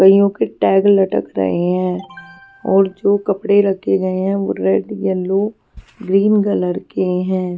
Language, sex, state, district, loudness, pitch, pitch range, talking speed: Hindi, female, Punjab, Pathankot, -16 LUFS, 195 Hz, 185-200 Hz, 150 wpm